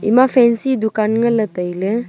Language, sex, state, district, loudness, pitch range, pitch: Wancho, female, Arunachal Pradesh, Longding, -16 LUFS, 215-240 Hz, 225 Hz